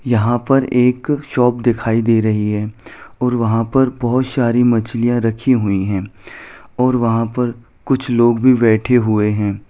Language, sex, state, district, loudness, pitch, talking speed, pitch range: Hindi, male, Jharkhand, Sahebganj, -16 LUFS, 120 Hz, 160 wpm, 110-125 Hz